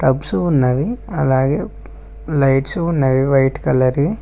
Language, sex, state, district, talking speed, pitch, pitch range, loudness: Telugu, male, Telangana, Mahabubabad, 115 wpm, 135 Hz, 130-155 Hz, -17 LUFS